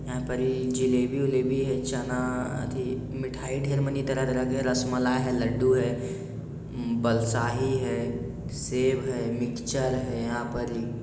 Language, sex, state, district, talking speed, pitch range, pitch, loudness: Maithili, male, Bihar, Lakhisarai, 120 wpm, 125-130 Hz, 130 Hz, -28 LUFS